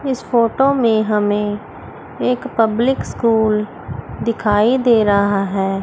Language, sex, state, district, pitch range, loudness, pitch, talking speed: Hindi, female, Chandigarh, Chandigarh, 210-245 Hz, -16 LUFS, 220 Hz, 115 wpm